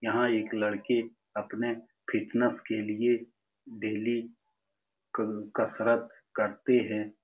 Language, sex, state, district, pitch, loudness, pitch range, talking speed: Hindi, male, Bihar, Saran, 110 Hz, -31 LUFS, 105-115 Hz, 90 wpm